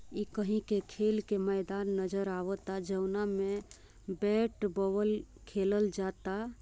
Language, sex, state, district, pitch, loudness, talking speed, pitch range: Bhojpuri, female, Bihar, Gopalganj, 200 Hz, -34 LUFS, 125 wpm, 195-210 Hz